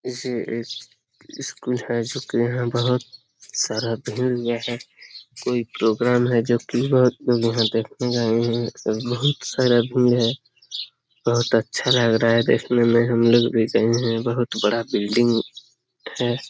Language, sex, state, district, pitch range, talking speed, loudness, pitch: Hindi, male, Bihar, Jamui, 115-125 Hz, 145 wpm, -21 LUFS, 120 Hz